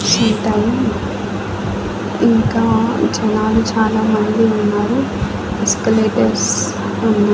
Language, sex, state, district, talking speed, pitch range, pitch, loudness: Telugu, female, Andhra Pradesh, Annamaya, 65 wpm, 205-225 Hz, 215 Hz, -16 LUFS